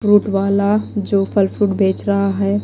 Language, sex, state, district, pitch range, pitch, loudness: Hindi, female, Himachal Pradesh, Shimla, 195-205 Hz, 200 Hz, -17 LUFS